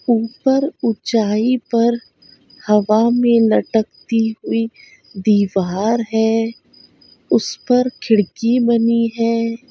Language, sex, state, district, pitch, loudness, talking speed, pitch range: Hindi, female, Uttar Pradesh, Budaun, 230 Hz, -17 LUFS, 85 wpm, 220-240 Hz